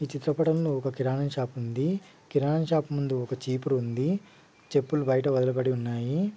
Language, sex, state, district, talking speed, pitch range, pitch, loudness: Telugu, male, Andhra Pradesh, Guntur, 170 wpm, 130-155 Hz, 140 Hz, -28 LUFS